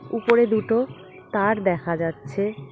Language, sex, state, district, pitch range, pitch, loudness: Bengali, female, West Bengal, Cooch Behar, 170-225 Hz, 205 Hz, -23 LUFS